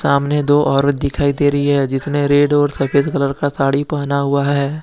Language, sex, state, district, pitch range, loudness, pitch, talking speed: Hindi, male, Jharkhand, Deoghar, 140-145 Hz, -16 LUFS, 140 Hz, 210 wpm